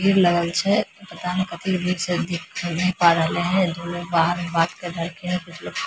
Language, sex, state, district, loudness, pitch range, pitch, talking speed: Maithili, female, Bihar, Samastipur, -22 LUFS, 170-180 Hz, 175 Hz, 255 wpm